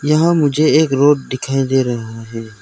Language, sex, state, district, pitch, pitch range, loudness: Hindi, male, Arunachal Pradesh, Lower Dibang Valley, 135 Hz, 120-150 Hz, -15 LUFS